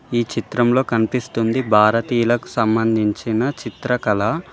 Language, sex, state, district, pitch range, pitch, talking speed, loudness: Telugu, male, Telangana, Mahabubabad, 110-125 Hz, 115 Hz, 80 wpm, -19 LUFS